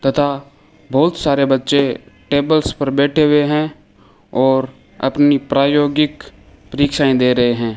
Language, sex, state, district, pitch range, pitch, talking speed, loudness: Hindi, male, Rajasthan, Bikaner, 130-145 Hz, 140 Hz, 125 wpm, -16 LUFS